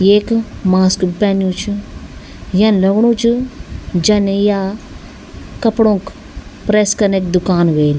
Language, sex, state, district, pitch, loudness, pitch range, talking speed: Garhwali, female, Uttarakhand, Tehri Garhwal, 200 Hz, -14 LUFS, 185-210 Hz, 110 wpm